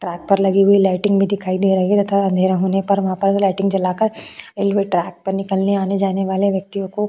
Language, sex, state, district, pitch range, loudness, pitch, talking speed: Hindi, female, Uttarakhand, Tehri Garhwal, 190-200 Hz, -17 LUFS, 195 Hz, 230 wpm